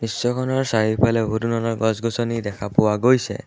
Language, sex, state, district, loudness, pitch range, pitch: Assamese, male, Assam, Sonitpur, -21 LUFS, 110-120 Hz, 115 Hz